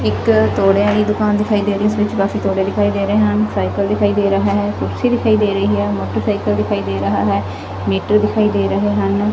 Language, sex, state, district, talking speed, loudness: Punjabi, female, Punjab, Fazilka, 225 wpm, -16 LUFS